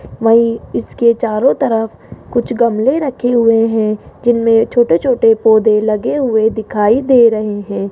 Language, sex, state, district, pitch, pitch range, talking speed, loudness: Hindi, female, Rajasthan, Jaipur, 225 Hz, 215-240 Hz, 150 wpm, -13 LUFS